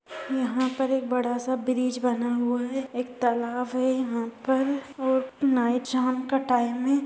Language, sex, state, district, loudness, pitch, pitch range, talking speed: Hindi, female, Bihar, Madhepura, -26 LUFS, 255 Hz, 245-265 Hz, 170 wpm